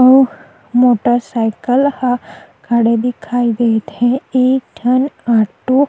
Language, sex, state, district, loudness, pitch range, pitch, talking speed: Chhattisgarhi, female, Chhattisgarh, Sukma, -15 LUFS, 235-260 Hz, 245 Hz, 120 wpm